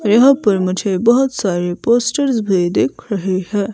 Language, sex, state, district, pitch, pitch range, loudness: Hindi, female, Himachal Pradesh, Shimla, 205 Hz, 185-235 Hz, -15 LUFS